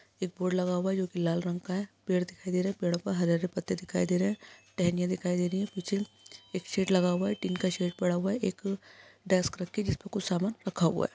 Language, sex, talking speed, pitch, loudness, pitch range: Hindi, female, 275 wpm, 185 Hz, -31 LUFS, 180-195 Hz